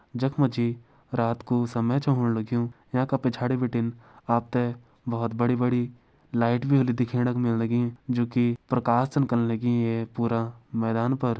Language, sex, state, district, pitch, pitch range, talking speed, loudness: Garhwali, male, Uttarakhand, Uttarkashi, 120 Hz, 115-125 Hz, 170 wpm, -26 LUFS